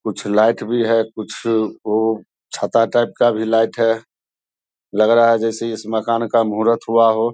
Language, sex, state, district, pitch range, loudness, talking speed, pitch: Hindi, male, Bihar, Saharsa, 110-115 Hz, -17 LUFS, 180 wpm, 115 Hz